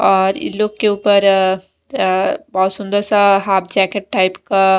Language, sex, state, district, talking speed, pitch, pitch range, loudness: Hindi, female, Maharashtra, Gondia, 165 wpm, 195 Hz, 190-205 Hz, -15 LUFS